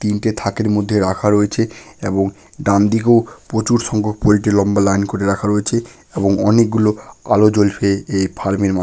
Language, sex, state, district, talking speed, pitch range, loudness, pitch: Bengali, male, West Bengal, Malda, 155 wpm, 100-110 Hz, -16 LUFS, 105 Hz